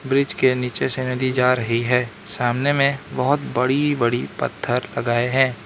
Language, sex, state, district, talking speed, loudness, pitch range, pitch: Hindi, male, Arunachal Pradesh, Lower Dibang Valley, 170 wpm, -20 LUFS, 120-135 Hz, 125 Hz